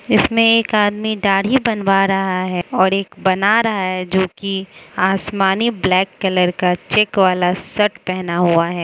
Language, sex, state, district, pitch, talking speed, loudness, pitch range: Hindi, female, Mizoram, Aizawl, 195 Hz, 165 wpm, -16 LUFS, 185-210 Hz